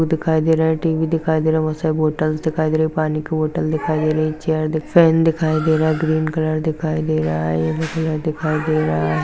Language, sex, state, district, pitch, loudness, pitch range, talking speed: Hindi, male, Maharashtra, Pune, 155 Hz, -19 LUFS, 155-160 Hz, 240 wpm